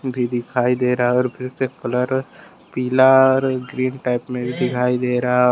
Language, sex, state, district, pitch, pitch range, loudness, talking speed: Hindi, male, Jharkhand, Deoghar, 125 Hz, 125-130 Hz, -19 LUFS, 185 wpm